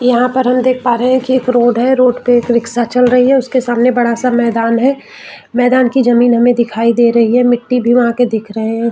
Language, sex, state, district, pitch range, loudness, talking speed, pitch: Hindi, female, Chhattisgarh, Bastar, 235-250 Hz, -12 LUFS, 260 wpm, 245 Hz